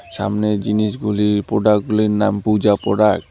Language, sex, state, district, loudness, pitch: Bengali, male, West Bengal, Alipurduar, -17 LUFS, 105 Hz